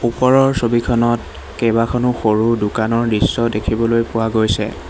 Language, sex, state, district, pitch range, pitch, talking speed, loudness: Assamese, male, Assam, Hailakandi, 110-120 Hz, 115 Hz, 110 wpm, -16 LUFS